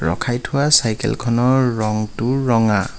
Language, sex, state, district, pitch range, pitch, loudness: Assamese, male, Assam, Kamrup Metropolitan, 110-130 Hz, 120 Hz, -17 LUFS